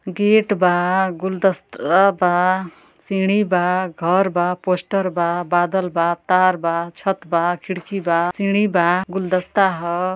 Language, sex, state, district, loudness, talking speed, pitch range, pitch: Bhojpuri, female, Uttar Pradesh, Ghazipur, -19 LUFS, 130 wpm, 175-190 Hz, 185 Hz